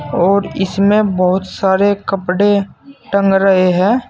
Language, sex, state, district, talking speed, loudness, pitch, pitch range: Hindi, male, Uttar Pradesh, Saharanpur, 115 wpm, -14 LUFS, 195 Hz, 185-205 Hz